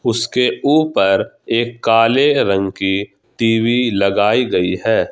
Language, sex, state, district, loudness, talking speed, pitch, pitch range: Hindi, male, Jharkhand, Ranchi, -15 LUFS, 115 wpm, 115 Hz, 100-120 Hz